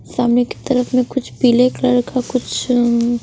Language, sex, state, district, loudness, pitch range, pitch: Hindi, female, Punjab, Pathankot, -16 LUFS, 240-255 Hz, 245 Hz